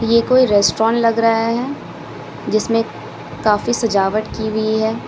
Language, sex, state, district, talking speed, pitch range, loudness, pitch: Hindi, female, Uttar Pradesh, Lalitpur, 140 wpm, 215-230 Hz, -17 LUFS, 225 Hz